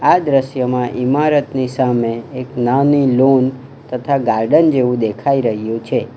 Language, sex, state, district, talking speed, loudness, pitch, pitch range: Gujarati, male, Gujarat, Valsad, 125 wpm, -15 LUFS, 130 Hz, 125-140 Hz